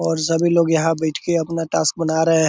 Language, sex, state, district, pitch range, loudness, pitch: Hindi, male, Bihar, Purnia, 160-165 Hz, -19 LUFS, 165 Hz